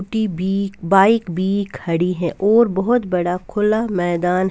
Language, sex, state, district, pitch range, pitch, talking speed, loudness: Hindi, female, Punjab, Kapurthala, 180-210 Hz, 190 Hz, 145 wpm, -18 LUFS